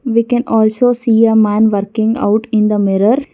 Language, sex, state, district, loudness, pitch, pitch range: English, female, Karnataka, Bangalore, -13 LUFS, 220 Hz, 210-230 Hz